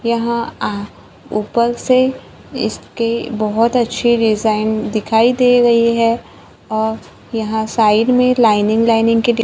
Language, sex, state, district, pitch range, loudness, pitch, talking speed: Hindi, female, Maharashtra, Gondia, 220-235 Hz, -15 LUFS, 230 Hz, 135 wpm